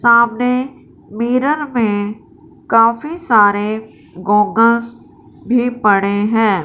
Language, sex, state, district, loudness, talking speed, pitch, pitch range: Hindi, female, Punjab, Fazilka, -15 LUFS, 80 wpm, 225 Hz, 205-245 Hz